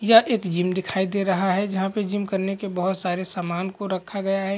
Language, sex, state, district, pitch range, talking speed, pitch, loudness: Hindi, male, Chhattisgarh, Bilaspur, 185-200 Hz, 235 wpm, 190 Hz, -24 LUFS